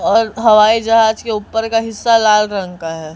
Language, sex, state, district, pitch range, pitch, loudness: Hindi, male, Chhattisgarh, Raipur, 210-225 Hz, 220 Hz, -13 LUFS